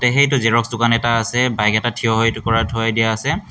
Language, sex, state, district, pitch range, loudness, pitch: Assamese, male, Assam, Hailakandi, 115-120 Hz, -17 LUFS, 115 Hz